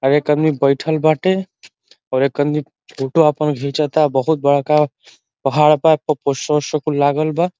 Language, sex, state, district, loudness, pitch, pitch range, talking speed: Bhojpuri, male, Uttar Pradesh, Ghazipur, -17 LUFS, 150 Hz, 140-155 Hz, 160 wpm